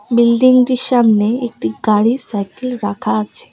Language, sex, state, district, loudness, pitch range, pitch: Bengali, female, West Bengal, Cooch Behar, -15 LUFS, 205-250 Hz, 235 Hz